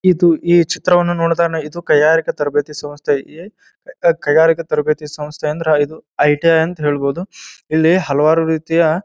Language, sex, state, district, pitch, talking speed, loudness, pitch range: Kannada, male, Karnataka, Bijapur, 160 Hz, 125 wpm, -15 LUFS, 150-170 Hz